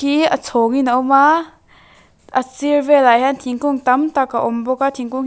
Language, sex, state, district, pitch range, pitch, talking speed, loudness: Mizo, female, Mizoram, Aizawl, 250-285 Hz, 265 Hz, 215 wpm, -16 LUFS